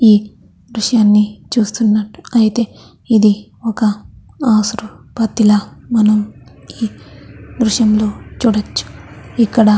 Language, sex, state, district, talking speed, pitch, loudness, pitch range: Telugu, female, Andhra Pradesh, Chittoor, 80 wpm, 215 Hz, -15 LUFS, 205-225 Hz